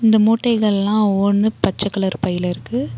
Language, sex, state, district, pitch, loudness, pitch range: Tamil, female, Tamil Nadu, Nilgiris, 205 Hz, -18 LUFS, 195-220 Hz